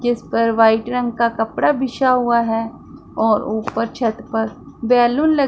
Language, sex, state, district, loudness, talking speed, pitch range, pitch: Hindi, female, Punjab, Pathankot, -18 LUFS, 165 wpm, 225-250 Hz, 235 Hz